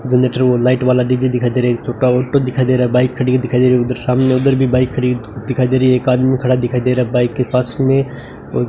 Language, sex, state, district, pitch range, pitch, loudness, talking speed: Hindi, male, Rajasthan, Bikaner, 125-130 Hz, 125 Hz, -15 LUFS, 310 wpm